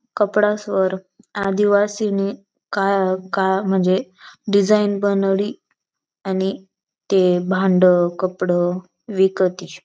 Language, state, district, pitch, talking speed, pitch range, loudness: Bhili, Maharashtra, Dhule, 195 Hz, 90 wpm, 185-205 Hz, -19 LUFS